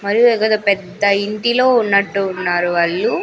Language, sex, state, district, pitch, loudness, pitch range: Telugu, female, Andhra Pradesh, Sri Satya Sai, 200 Hz, -16 LUFS, 195-230 Hz